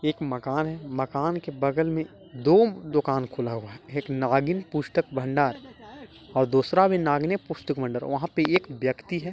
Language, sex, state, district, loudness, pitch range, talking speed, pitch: Hindi, male, Bihar, Jahanabad, -26 LUFS, 130-165 Hz, 180 wpm, 145 Hz